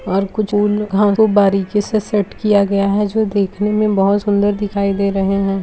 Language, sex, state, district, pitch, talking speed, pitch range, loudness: Hindi, female, Bihar, Kishanganj, 205 Hz, 190 wpm, 200-210 Hz, -16 LUFS